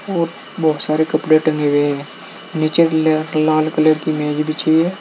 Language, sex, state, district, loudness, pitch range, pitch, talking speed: Hindi, male, Uttar Pradesh, Saharanpur, -16 LUFS, 155-160 Hz, 155 Hz, 180 wpm